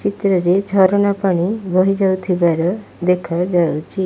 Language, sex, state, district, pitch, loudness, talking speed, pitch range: Odia, female, Odisha, Malkangiri, 185 Hz, -17 LUFS, 90 wpm, 175-195 Hz